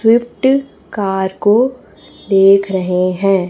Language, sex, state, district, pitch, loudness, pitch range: Hindi, female, Chhattisgarh, Raipur, 195 Hz, -14 LUFS, 190-230 Hz